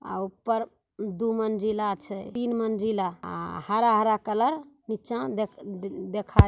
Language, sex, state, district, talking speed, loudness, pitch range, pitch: Maithili, female, Bihar, Samastipur, 130 wpm, -28 LUFS, 200-230 Hz, 215 Hz